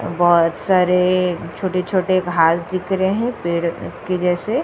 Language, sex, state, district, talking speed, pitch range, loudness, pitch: Hindi, female, Uttar Pradesh, Jyotiba Phule Nagar, 140 wpm, 170-185 Hz, -18 LUFS, 180 Hz